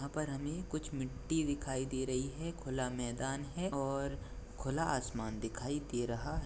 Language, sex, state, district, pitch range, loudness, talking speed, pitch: Hindi, male, Maharashtra, Dhule, 130-150 Hz, -39 LUFS, 175 wpm, 135 Hz